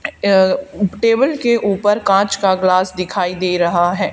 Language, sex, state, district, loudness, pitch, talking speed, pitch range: Hindi, female, Haryana, Charkhi Dadri, -15 LUFS, 195 Hz, 145 wpm, 185-225 Hz